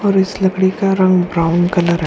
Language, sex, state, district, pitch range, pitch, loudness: Hindi, female, Bihar, Kishanganj, 175-190 Hz, 185 Hz, -15 LUFS